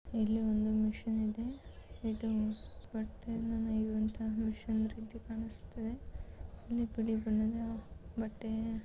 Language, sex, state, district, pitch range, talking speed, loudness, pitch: Kannada, female, Karnataka, Bellary, 220-225 Hz, 95 wpm, -37 LUFS, 225 Hz